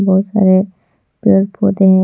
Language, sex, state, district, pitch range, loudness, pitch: Hindi, female, Jharkhand, Deoghar, 190-200 Hz, -13 LUFS, 195 Hz